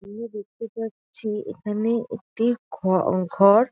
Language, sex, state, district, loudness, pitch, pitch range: Bengali, female, West Bengal, North 24 Parganas, -24 LUFS, 215 Hz, 200-230 Hz